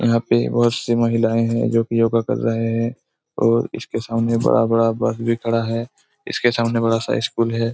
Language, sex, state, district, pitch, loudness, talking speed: Hindi, male, Bihar, Araria, 115 Hz, -19 LUFS, 195 wpm